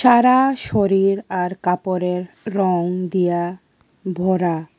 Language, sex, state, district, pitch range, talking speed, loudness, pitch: Bengali, female, Tripura, West Tripura, 180-195 Hz, 85 wpm, -19 LUFS, 185 Hz